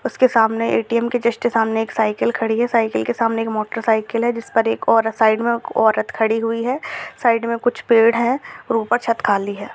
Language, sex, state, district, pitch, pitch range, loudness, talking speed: Hindi, female, Bihar, Purnia, 230 Hz, 225-235 Hz, -18 LUFS, 220 wpm